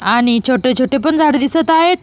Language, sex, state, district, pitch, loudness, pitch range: Marathi, female, Maharashtra, Solapur, 275 Hz, -13 LUFS, 250-320 Hz